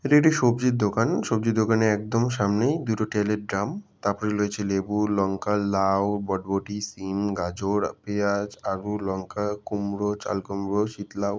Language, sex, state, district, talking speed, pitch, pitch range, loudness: Bengali, male, West Bengal, Jalpaiguri, 145 wpm, 105 Hz, 100-105 Hz, -25 LUFS